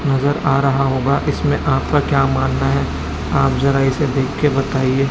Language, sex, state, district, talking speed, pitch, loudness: Hindi, male, Chhattisgarh, Raipur, 165 wpm, 135 Hz, -17 LUFS